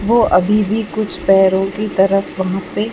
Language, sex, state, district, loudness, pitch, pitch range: Hindi, male, Chhattisgarh, Raipur, -15 LUFS, 195 Hz, 190-215 Hz